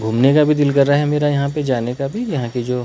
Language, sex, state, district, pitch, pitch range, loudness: Hindi, male, Himachal Pradesh, Shimla, 140 Hz, 125-150 Hz, -17 LUFS